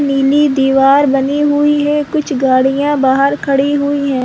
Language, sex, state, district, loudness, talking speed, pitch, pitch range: Hindi, female, Chhattisgarh, Bastar, -12 LUFS, 155 wpm, 280 Hz, 270-290 Hz